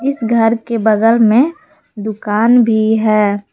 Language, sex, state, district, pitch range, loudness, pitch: Hindi, female, Jharkhand, Palamu, 215-240 Hz, -13 LUFS, 225 Hz